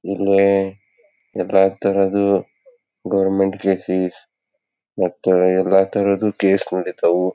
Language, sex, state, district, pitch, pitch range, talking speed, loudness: Kannada, male, Karnataka, Belgaum, 95 Hz, 95-100 Hz, 65 wpm, -18 LUFS